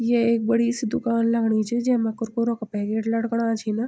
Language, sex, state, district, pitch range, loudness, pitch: Garhwali, female, Uttarakhand, Tehri Garhwal, 225-235 Hz, -23 LUFS, 230 Hz